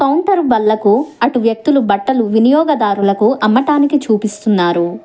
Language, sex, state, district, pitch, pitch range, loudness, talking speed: Telugu, female, Telangana, Hyderabad, 230 Hz, 210-285 Hz, -13 LUFS, 95 wpm